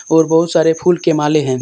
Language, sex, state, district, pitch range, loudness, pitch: Hindi, male, Jharkhand, Deoghar, 155-170 Hz, -13 LUFS, 160 Hz